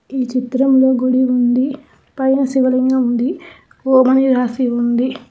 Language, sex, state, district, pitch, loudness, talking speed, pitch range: Telugu, female, Telangana, Hyderabad, 260 Hz, -15 LUFS, 125 wpm, 250-265 Hz